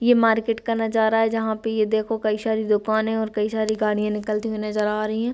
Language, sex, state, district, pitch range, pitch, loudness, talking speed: Hindi, female, Bihar, Sitamarhi, 215-225 Hz, 220 Hz, -22 LUFS, 245 wpm